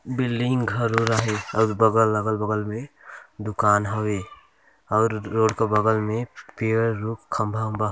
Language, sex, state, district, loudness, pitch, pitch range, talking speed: Hindi, male, Chhattisgarh, Balrampur, -23 LUFS, 110 Hz, 105-115 Hz, 160 wpm